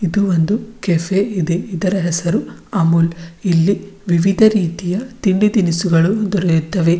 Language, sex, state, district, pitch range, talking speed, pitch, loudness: Kannada, female, Karnataka, Bidar, 170-200 Hz, 110 wpm, 185 Hz, -16 LUFS